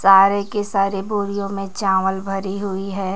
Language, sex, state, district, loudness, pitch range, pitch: Hindi, female, Chhattisgarh, Raipur, -20 LUFS, 195-200 Hz, 195 Hz